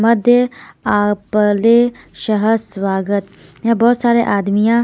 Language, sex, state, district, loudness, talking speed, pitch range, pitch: Hindi, female, Punjab, Pathankot, -15 LUFS, 100 wpm, 205-235 Hz, 220 Hz